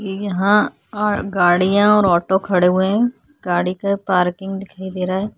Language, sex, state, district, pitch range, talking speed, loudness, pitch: Hindi, female, Chhattisgarh, Korba, 180-205 Hz, 155 wpm, -17 LUFS, 195 Hz